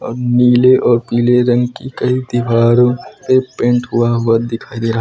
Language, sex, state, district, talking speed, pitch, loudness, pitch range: Hindi, male, Uttar Pradesh, Lucknow, 190 wpm, 120 Hz, -13 LUFS, 120-125 Hz